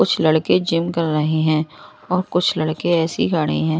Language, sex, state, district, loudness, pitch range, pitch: Hindi, male, Odisha, Malkangiri, -19 LUFS, 155-170 Hz, 160 Hz